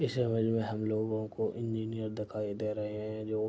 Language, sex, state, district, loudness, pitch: Hindi, male, Uttar Pradesh, Deoria, -34 LUFS, 110 Hz